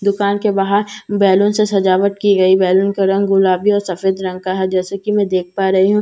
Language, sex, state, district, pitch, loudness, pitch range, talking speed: Hindi, female, Bihar, Katihar, 195 Hz, -15 LUFS, 190-205 Hz, 260 wpm